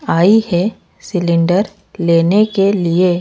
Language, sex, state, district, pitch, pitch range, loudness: Hindi, female, Odisha, Malkangiri, 180 Hz, 170-200 Hz, -14 LUFS